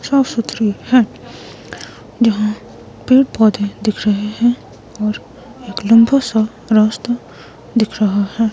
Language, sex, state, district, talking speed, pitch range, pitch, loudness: Hindi, female, Himachal Pradesh, Shimla, 120 wpm, 210-240 Hz, 220 Hz, -15 LUFS